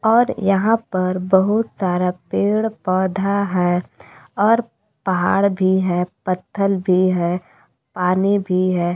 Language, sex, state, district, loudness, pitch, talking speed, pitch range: Hindi, female, Jharkhand, Palamu, -19 LUFS, 190 Hz, 120 wpm, 180-200 Hz